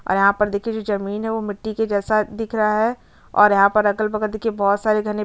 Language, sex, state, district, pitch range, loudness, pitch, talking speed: Hindi, female, Chhattisgarh, Bastar, 205-220 Hz, -20 LUFS, 215 Hz, 250 wpm